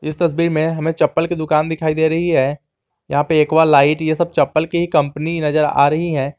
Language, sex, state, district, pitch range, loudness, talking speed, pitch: Hindi, male, Jharkhand, Garhwa, 150-165 Hz, -16 LUFS, 235 wpm, 155 Hz